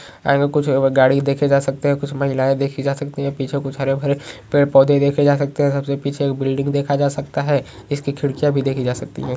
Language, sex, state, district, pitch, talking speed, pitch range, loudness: Hindi, male, West Bengal, Kolkata, 140 Hz, 230 wpm, 135-140 Hz, -18 LUFS